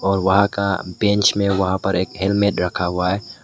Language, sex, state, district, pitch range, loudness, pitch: Hindi, male, Meghalaya, West Garo Hills, 95-100 Hz, -19 LUFS, 95 Hz